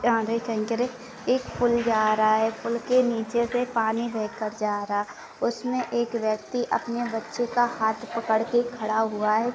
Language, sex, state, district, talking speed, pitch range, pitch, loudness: Hindi, female, Maharashtra, Pune, 170 wpm, 220-240 Hz, 230 Hz, -26 LUFS